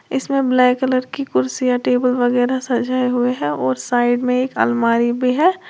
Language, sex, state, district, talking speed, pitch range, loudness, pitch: Hindi, female, Uttar Pradesh, Lalitpur, 180 wpm, 245-260 Hz, -17 LUFS, 250 Hz